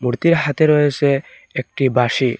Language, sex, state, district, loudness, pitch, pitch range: Bengali, male, Assam, Hailakandi, -17 LUFS, 140 Hz, 130-150 Hz